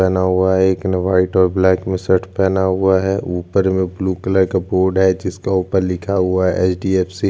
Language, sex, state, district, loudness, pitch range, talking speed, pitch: Hindi, male, Chhattisgarh, Jashpur, -16 LUFS, 90-95 Hz, 240 wpm, 95 Hz